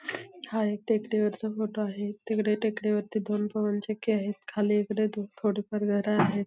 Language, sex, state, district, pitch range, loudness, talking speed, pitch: Marathi, female, Maharashtra, Solapur, 205-215 Hz, -29 LUFS, 175 wpm, 210 Hz